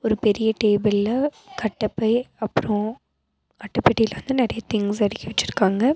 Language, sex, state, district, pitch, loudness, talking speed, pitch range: Tamil, female, Tamil Nadu, Nilgiris, 220 Hz, -22 LUFS, 100 wpm, 210-235 Hz